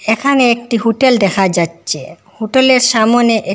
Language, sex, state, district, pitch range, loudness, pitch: Bengali, female, Assam, Hailakandi, 210-250 Hz, -12 LUFS, 230 Hz